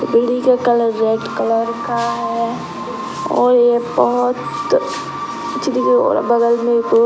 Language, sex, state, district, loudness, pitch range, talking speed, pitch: Hindi, male, Bihar, Sitamarhi, -16 LUFS, 225-245 Hz, 85 wpm, 235 Hz